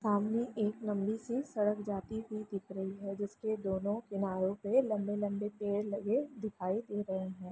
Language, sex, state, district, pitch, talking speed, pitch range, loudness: Hindi, female, Bihar, Lakhisarai, 205 Hz, 170 wpm, 195-215 Hz, -36 LUFS